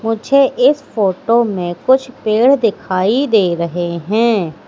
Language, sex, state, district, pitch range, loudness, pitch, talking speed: Hindi, female, Madhya Pradesh, Katni, 185-255 Hz, -14 LUFS, 220 Hz, 130 wpm